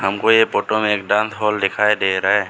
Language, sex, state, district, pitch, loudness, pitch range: Hindi, male, Arunachal Pradesh, Lower Dibang Valley, 105 Hz, -17 LUFS, 100-110 Hz